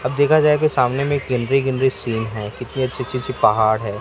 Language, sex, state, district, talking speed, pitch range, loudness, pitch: Hindi, male, Chhattisgarh, Raipur, 240 wpm, 115-135 Hz, -19 LUFS, 130 Hz